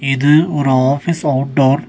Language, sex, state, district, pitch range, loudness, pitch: Tamil, male, Tamil Nadu, Nilgiris, 135-150 Hz, -14 LUFS, 140 Hz